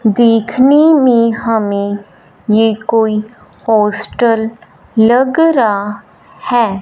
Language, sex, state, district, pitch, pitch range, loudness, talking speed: Hindi, female, Punjab, Fazilka, 225 Hz, 210-240 Hz, -12 LUFS, 80 wpm